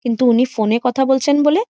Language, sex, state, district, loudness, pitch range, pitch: Bengali, female, West Bengal, Jhargram, -15 LUFS, 245-285 Hz, 255 Hz